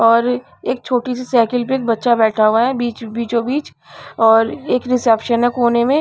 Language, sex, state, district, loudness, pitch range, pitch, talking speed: Hindi, female, Punjab, Pathankot, -16 LUFS, 230-250 Hz, 240 Hz, 190 wpm